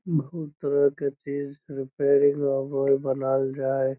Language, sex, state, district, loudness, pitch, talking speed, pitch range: Magahi, male, Bihar, Lakhisarai, -25 LUFS, 140 Hz, 105 wpm, 135-140 Hz